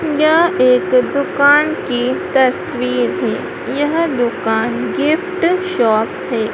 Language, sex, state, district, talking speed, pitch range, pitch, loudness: Hindi, female, Madhya Pradesh, Dhar, 100 wpm, 220-315 Hz, 280 Hz, -15 LUFS